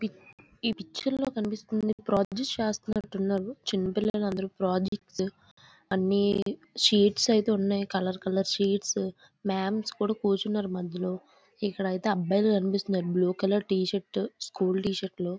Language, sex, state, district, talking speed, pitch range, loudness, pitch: Telugu, female, Andhra Pradesh, Visakhapatnam, 125 wpm, 190-210 Hz, -28 LUFS, 200 Hz